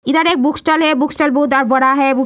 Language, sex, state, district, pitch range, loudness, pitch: Hindi, female, Bihar, Lakhisarai, 270-310 Hz, -13 LUFS, 290 Hz